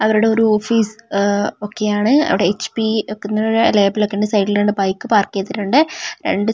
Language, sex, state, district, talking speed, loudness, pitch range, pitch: Malayalam, female, Kerala, Wayanad, 165 wpm, -17 LUFS, 205-225 Hz, 210 Hz